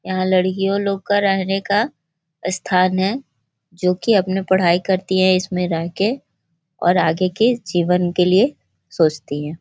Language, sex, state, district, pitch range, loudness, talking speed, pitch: Hindi, female, Bihar, Jahanabad, 175-195 Hz, -18 LUFS, 155 wpm, 185 Hz